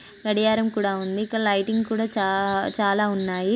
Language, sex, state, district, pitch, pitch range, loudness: Telugu, female, Telangana, Nalgonda, 205 Hz, 195-220 Hz, -23 LUFS